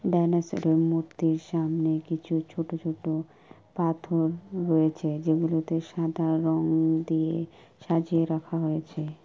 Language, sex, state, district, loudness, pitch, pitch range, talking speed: Bengali, female, West Bengal, Purulia, -27 LUFS, 160 Hz, 160-165 Hz, 95 wpm